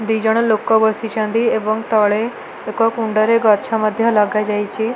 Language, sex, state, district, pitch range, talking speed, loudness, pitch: Odia, female, Odisha, Malkangiri, 215-225 Hz, 120 wpm, -16 LUFS, 220 Hz